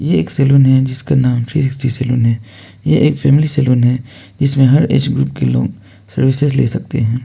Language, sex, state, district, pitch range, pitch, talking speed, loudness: Hindi, male, Arunachal Pradesh, Papum Pare, 120-140 Hz, 130 Hz, 205 wpm, -14 LUFS